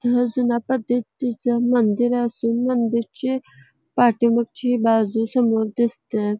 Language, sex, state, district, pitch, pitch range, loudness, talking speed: Marathi, female, Karnataka, Belgaum, 240 Hz, 230-245 Hz, -21 LUFS, 85 wpm